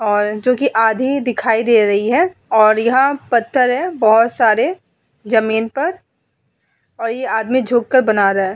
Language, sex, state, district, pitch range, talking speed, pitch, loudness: Hindi, female, Uttar Pradesh, Hamirpur, 220-260 Hz, 170 wpm, 230 Hz, -15 LUFS